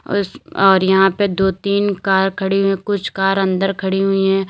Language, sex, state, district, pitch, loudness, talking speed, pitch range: Hindi, female, Uttar Pradesh, Lalitpur, 195 Hz, -16 LUFS, 225 wpm, 190-200 Hz